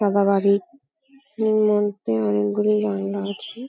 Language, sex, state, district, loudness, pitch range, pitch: Bengali, female, West Bengal, Paschim Medinipur, -21 LUFS, 195-210 Hz, 200 Hz